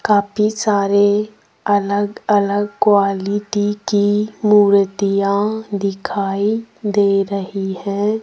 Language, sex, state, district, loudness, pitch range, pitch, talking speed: Hindi, female, Rajasthan, Jaipur, -17 LUFS, 200-210 Hz, 205 Hz, 80 wpm